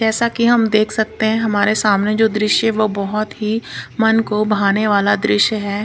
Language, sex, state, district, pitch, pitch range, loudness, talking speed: Hindi, female, Punjab, Kapurthala, 215 Hz, 210-225 Hz, -16 LUFS, 195 wpm